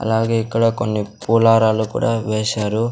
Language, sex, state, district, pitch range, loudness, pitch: Telugu, male, Andhra Pradesh, Sri Satya Sai, 110-115 Hz, -18 LUFS, 110 Hz